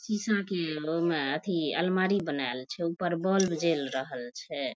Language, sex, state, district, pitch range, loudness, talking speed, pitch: Maithili, female, Bihar, Madhepura, 155-190 Hz, -30 LUFS, 150 wpm, 170 Hz